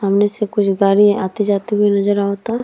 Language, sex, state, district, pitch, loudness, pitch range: Bhojpuri, female, Bihar, East Champaran, 205 Hz, -16 LUFS, 200-210 Hz